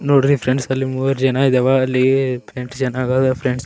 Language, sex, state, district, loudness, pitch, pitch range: Kannada, male, Karnataka, Raichur, -17 LUFS, 130 Hz, 130-135 Hz